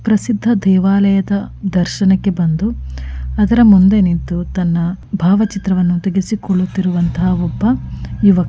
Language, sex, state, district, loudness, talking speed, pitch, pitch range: Kannada, female, Karnataka, Mysore, -15 LUFS, 90 wpm, 190 Hz, 175-200 Hz